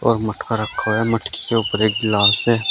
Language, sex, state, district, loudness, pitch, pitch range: Hindi, male, Uttar Pradesh, Shamli, -18 LUFS, 110 Hz, 105-115 Hz